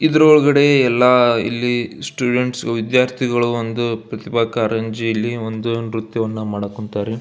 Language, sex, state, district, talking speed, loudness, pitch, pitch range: Kannada, male, Karnataka, Belgaum, 110 wpm, -17 LUFS, 115 Hz, 110-125 Hz